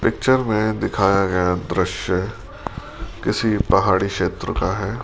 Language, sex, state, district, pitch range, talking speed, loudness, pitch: Hindi, female, Rajasthan, Jaipur, 90-105 Hz, 120 wpm, -20 LUFS, 95 Hz